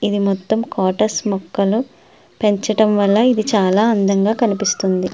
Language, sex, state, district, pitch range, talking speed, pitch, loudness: Telugu, female, Andhra Pradesh, Srikakulam, 195-220 Hz, 105 wpm, 205 Hz, -17 LUFS